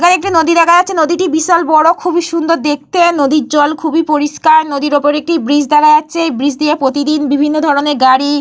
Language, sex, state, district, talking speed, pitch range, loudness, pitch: Bengali, female, Jharkhand, Jamtara, 215 wpm, 290-335 Hz, -11 LUFS, 305 Hz